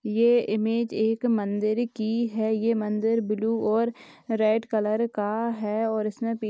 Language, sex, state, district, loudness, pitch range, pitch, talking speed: Hindi, female, Chhattisgarh, Jashpur, -25 LUFS, 215-230 Hz, 220 Hz, 155 wpm